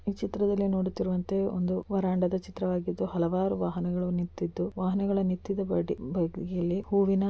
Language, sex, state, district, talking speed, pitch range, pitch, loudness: Kannada, female, Karnataka, Dakshina Kannada, 100 wpm, 180-195 Hz, 185 Hz, -30 LUFS